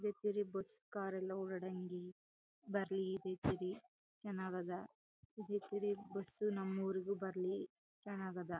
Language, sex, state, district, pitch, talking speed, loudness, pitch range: Kannada, female, Karnataka, Chamarajanagar, 195 Hz, 90 wpm, -44 LUFS, 185-205 Hz